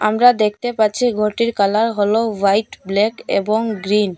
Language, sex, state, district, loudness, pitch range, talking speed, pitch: Bengali, female, Assam, Hailakandi, -17 LUFS, 205-225 Hz, 145 wpm, 215 Hz